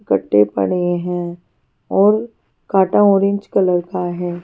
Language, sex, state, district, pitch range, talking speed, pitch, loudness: Hindi, female, Haryana, Charkhi Dadri, 175-195 Hz, 120 wpm, 180 Hz, -17 LUFS